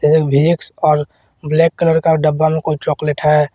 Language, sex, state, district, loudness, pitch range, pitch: Hindi, male, Jharkhand, Garhwa, -15 LUFS, 150-160 Hz, 155 Hz